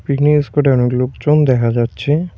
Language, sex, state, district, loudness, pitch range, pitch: Bengali, male, West Bengal, Cooch Behar, -15 LUFS, 125-150 Hz, 140 Hz